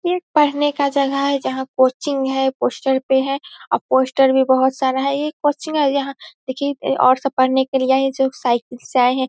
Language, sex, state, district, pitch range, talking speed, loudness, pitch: Hindi, female, Bihar, Saharsa, 260-280 Hz, 220 wpm, -18 LUFS, 270 Hz